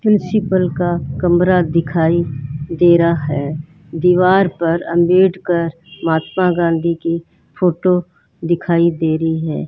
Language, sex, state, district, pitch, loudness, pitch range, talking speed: Hindi, male, Rajasthan, Bikaner, 170 Hz, -16 LUFS, 165-180 Hz, 110 wpm